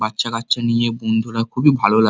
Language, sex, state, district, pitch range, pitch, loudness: Bengali, male, West Bengal, Kolkata, 110-120 Hz, 115 Hz, -18 LUFS